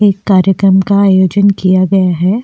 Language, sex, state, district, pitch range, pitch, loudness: Hindi, female, Goa, North and South Goa, 185-200 Hz, 190 Hz, -10 LUFS